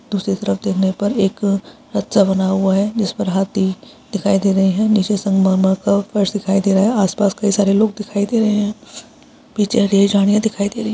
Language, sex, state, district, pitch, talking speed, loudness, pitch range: Hindi, female, Chhattisgarh, Balrampur, 200 Hz, 210 wpm, -17 LUFS, 195-210 Hz